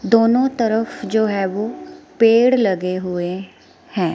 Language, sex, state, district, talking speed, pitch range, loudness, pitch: Hindi, female, Himachal Pradesh, Shimla, 130 wpm, 185-230 Hz, -18 LUFS, 215 Hz